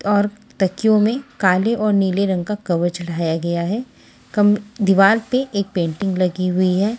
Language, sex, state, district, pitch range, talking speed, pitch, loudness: Hindi, female, Haryana, Jhajjar, 180-210 Hz, 170 wpm, 195 Hz, -19 LUFS